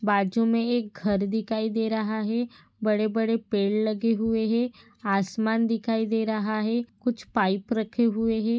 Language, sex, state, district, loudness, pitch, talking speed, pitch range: Hindi, female, Maharashtra, Pune, -26 LUFS, 220 Hz, 170 wpm, 215-230 Hz